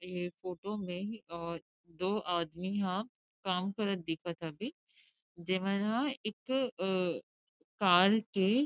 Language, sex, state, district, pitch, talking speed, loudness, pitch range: Chhattisgarhi, female, Chhattisgarh, Rajnandgaon, 190 Hz, 125 wpm, -34 LUFS, 175-210 Hz